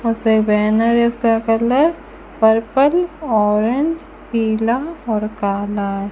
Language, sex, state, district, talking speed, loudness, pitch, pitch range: Hindi, female, Rajasthan, Bikaner, 110 wpm, -17 LUFS, 225 Hz, 215-265 Hz